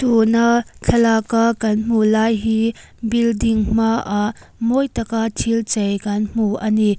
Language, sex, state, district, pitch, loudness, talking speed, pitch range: Mizo, female, Mizoram, Aizawl, 225 Hz, -18 LUFS, 135 wpm, 215-230 Hz